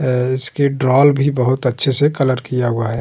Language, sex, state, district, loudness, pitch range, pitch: Hindi, male, Uttar Pradesh, Hamirpur, -16 LUFS, 125-140 Hz, 130 Hz